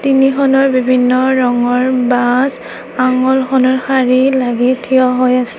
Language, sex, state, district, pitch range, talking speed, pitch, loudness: Assamese, female, Assam, Kamrup Metropolitan, 250-265 Hz, 95 wpm, 255 Hz, -12 LUFS